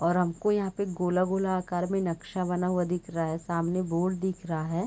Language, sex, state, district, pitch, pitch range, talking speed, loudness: Hindi, female, Chhattisgarh, Raigarh, 180 Hz, 170-185 Hz, 220 wpm, -29 LUFS